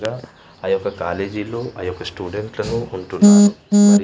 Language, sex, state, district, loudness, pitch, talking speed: Telugu, male, Andhra Pradesh, Manyam, -18 LUFS, 120 Hz, 180 wpm